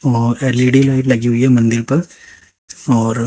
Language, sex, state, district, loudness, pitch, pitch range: Hindi, female, Haryana, Jhajjar, -14 LUFS, 125 Hz, 115-130 Hz